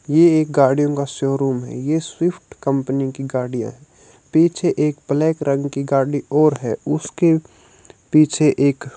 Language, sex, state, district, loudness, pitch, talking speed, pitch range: Hindi, male, Chhattisgarh, Raipur, -18 LUFS, 140 Hz, 160 wpm, 135-155 Hz